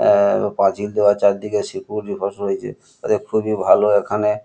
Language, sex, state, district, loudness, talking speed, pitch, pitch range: Bengali, male, West Bengal, Kolkata, -18 LUFS, 160 wpm, 105 Hz, 100-105 Hz